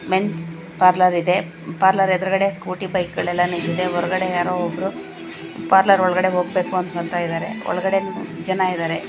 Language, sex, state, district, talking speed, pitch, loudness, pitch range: Kannada, female, Karnataka, Dakshina Kannada, 120 wpm, 180 Hz, -20 LUFS, 170-190 Hz